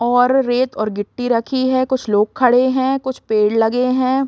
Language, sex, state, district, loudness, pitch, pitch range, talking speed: Hindi, female, Chhattisgarh, Raigarh, -17 LUFS, 250 Hz, 225-260 Hz, 195 wpm